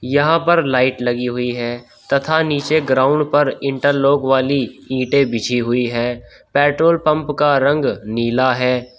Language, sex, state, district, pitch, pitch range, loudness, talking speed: Hindi, male, Uttar Pradesh, Shamli, 135 Hz, 125-145 Hz, -17 LUFS, 145 wpm